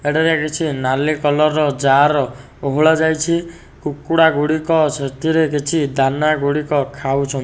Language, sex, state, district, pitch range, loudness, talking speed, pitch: Odia, male, Odisha, Nuapada, 140-160 Hz, -17 LUFS, 115 wpm, 150 Hz